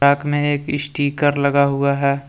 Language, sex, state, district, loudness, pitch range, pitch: Hindi, male, Jharkhand, Deoghar, -18 LUFS, 140-145 Hz, 140 Hz